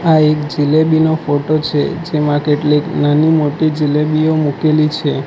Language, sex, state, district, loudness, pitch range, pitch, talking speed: Gujarati, male, Gujarat, Valsad, -14 LUFS, 150-155 Hz, 150 Hz, 150 wpm